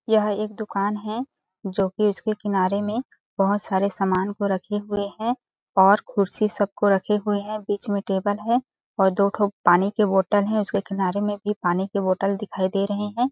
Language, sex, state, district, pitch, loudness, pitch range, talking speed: Hindi, female, Chhattisgarh, Balrampur, 205 Hz, -23 LUFS, 195-210 Hz, 205 wpm